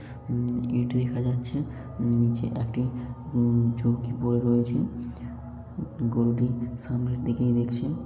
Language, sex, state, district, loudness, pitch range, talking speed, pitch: Bengali, male, West Bengal, North 24 Parganas, -27 LUFS, 120-125 Hz, 105 wpm, 120 Hz